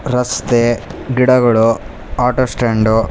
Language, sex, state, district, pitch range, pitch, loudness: Kannada, male, Karnataka, Raichur, 115-125 Hz, 120 Hz, -14 LUFS